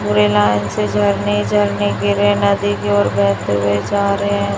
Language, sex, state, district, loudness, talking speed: Hindi, female, Chhattisgarh, Raipur, -16 LUFS, 170 wpm